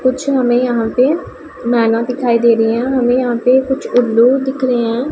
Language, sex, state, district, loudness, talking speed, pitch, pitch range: Hindi, female, Punjab, Pathankot, -14 LUFS, 190 wpm, 245 Hz, 235-260 Hz